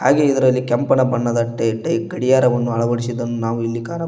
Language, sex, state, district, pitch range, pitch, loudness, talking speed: Kannada, male, Karnataka, Koppal, 115-135 Hz, 120 Hz, -18 LUFS, 160 wpm